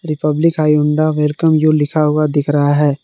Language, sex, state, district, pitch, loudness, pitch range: Hindi, male, Jharkhand, Palamu, 150 Hz, -14 LUFS, 150-155 Hz